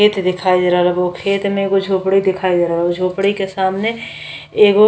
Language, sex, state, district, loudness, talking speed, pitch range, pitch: Bhojpuri, female, Uttar Pradesh, Gorakhpur, -16 LUFS, 235 wpm, 180-200 Hz, 190 Hz